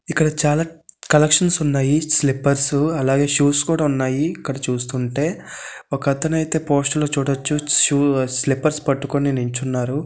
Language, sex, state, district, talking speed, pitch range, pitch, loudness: Telugu, male, Andhra Pradesh, Visakhapatnam, 125 wpm, 135-155 Hz, 145 Hz, -19 LUFS